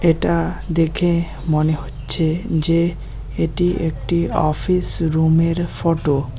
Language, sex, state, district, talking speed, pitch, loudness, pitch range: Bengali, male, West Bengal, Alipurduar, 105 wpm, 165 Hz, -18 LUFS, 155-170 Hz